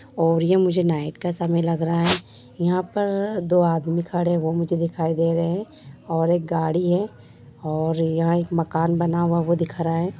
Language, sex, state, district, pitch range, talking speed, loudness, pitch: Hindi, female, Bihar, Lakhisarai, 165-175 Hz, 205 wpm, -22 LUFS, 170 Hz